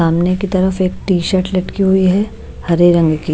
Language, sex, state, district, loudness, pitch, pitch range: Hindi, female, Maharashtra, Washim, -14 LUFS, 185 Hz, 175-190 Hz